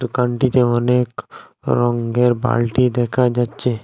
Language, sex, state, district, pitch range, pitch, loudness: Bengali, male, Assam, Hailakandi, 120-125 Hz, 125 Hz, -18 LUFS